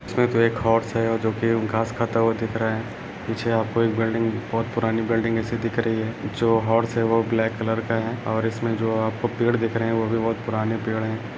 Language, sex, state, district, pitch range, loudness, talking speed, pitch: Hindi, male, Bihar, Lakhisarai, 110-115 Hz, -23 LUFS, 250 wpm, 115 Hz